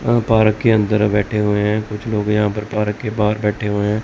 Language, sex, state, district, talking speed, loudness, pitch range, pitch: Hindi, male, Chandigarh, Chandigarh, 250 wpm, -17 LUFS, 105-110 Hz, 105 Hz